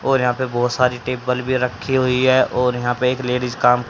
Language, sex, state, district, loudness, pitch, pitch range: Hindi, female, Haryana, Jhajjar, -18 LUFS, 125 Hz, 125-130 Hz